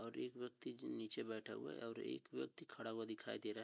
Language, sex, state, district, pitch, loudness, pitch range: Hindi, male, Bihar, Begusarai, 110 Hz, -49 LUFS, 110-115 Hz